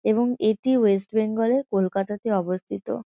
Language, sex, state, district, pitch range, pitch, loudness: Bengali, female, West Bengal, Kolkata, 195-230 Hz, 215 Hz, -23 LUFS